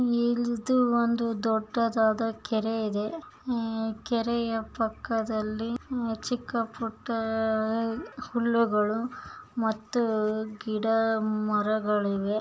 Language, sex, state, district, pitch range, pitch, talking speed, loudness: Kannada, female, Karnataka, Bijapur, 220-235 Hz, 225 Hz, 65 wpm, -28 LUFS